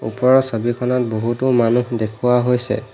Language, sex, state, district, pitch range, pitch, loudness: Assamese, male, Assam, Hailakandi, 115-125 Hz, 120 Hz, -18 LUFS